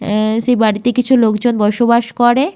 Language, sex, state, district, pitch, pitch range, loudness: Bengali, female, West Bengal, Malda, 235 Hz, 215-245 Hz, -13 LUFS